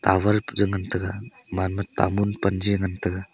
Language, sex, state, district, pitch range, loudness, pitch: Wancho, male, Arunachal Pradesh, Longding, 95-100 Hz, -25 LUFS, 95 Hz